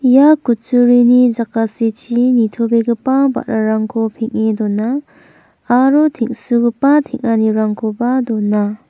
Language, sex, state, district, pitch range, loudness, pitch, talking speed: Garo, female, Meghalaya, West Garo Hills, 220-255 Hz, -14 LUFS, 235 Hz, 75 wpm